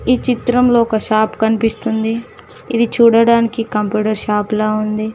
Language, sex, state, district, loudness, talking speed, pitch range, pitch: Telugu, female, Telangana, Mahabubabad, -15 LUFS, 130 wpm, 215-235 Hz, 225 Hz